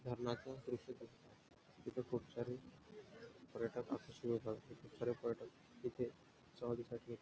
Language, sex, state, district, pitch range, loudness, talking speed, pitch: Marathi, male, Maharashtra, Nagpur, 120-130 Hz, -47 LUFS, 90 wpm, 120 Hz